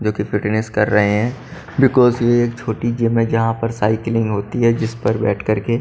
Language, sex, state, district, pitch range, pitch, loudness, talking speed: Hindi, male, Haryana, Charkhi Dadri, 105-120 Hz, 115 Hz, -17 LUFS, 225 wpm